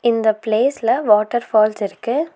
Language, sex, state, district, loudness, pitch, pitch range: Tamil, female, Tamil Nadu, Nilgiris, -17 LUFS, 220 Hz, 215-240 Hz